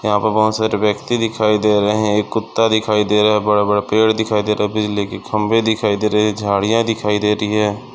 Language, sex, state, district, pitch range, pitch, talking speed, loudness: Hindi, male, Maharashtra, Aurangabad, 105-110 Hz, 105 Hz, 240 wpm, -16 LUFS